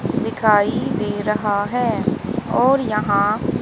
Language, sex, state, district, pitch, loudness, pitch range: Hindi, female, Haryana, Jhajjar, 215 Hz, -19 LUFS, 205-235 Hz